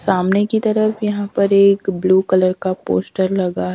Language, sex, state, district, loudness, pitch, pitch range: Hindi, female, Madhya Pradesh, Dhar, -16 LUFS, 190 Hz, 185-205 Hz